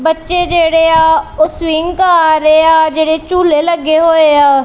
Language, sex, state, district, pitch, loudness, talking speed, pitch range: Punjabi, female, Punjab, Kapurthala, 320 Hz, -10 LUFS, 165 wpm, 315-335 Hz